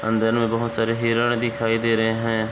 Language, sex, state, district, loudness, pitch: Bhojpuri, male, Uttar Pradesh, Gorakhpur, -21 LUFS, 115 Hz